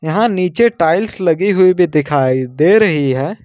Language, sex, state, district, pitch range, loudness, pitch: Hindi, male, Jharkhand, Ranchi, 145-195 Hz, -13 LUFS, 170 Hz